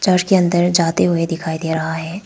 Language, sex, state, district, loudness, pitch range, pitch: Hindi, female, Arunachal Pradesh, Papum Pare, -17 LUFS, 160-180 Hz, 170 Hz